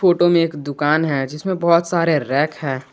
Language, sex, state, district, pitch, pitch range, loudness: Hindi, male, Jharkhand, Garhwa, 155 Hz, 145-170 Hz, -18 LUFS